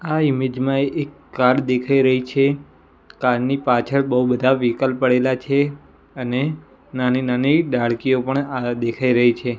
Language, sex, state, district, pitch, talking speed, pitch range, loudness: Gujarati, male, Gujarat, Gandhinagar, 130 Hz, 155 wpm, 125-140 Hz, -19 LUFS